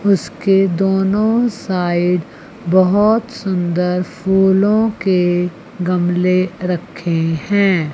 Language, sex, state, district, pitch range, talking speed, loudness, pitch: Hindi, female, Chandigarh, Chandigarh, 180-200 Hz, 75 wpm, -16 LUFS, 185 Hz